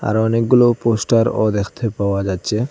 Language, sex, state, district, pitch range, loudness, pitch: Bengali, male, Assam, Hailakandi, 105-115 Hz, -17 LUFS, 110 Hz